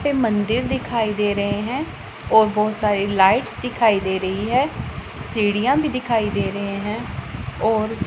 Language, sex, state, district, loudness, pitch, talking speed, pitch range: Hindi, female, Punjab, Pathankot, -20 LUFS, 215 Hz, 155 wpm, 205-240 Hz